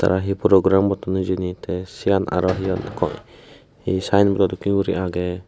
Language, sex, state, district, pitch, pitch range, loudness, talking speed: Chakma, male, Tripura, Unakoti, 95 Hz, 90-100 Hz, -20 LUFS, 175 wpm